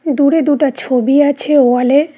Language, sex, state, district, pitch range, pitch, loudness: Bengali, female, West Bengal, Cooch Behar, 265-290 Hz, 285 Hz, -12 LUFS